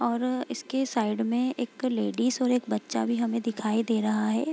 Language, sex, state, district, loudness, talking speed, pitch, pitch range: Hindi, female, Bihar, Gopalganj, -28 LUFS, 210 wpm, 235 Hz, 220-255 Hz